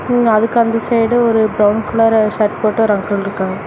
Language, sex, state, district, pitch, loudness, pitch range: Tamil, female, Tamil Nadu, Namakkal, 220 Hz, -14 LUFS, 210-230 Hz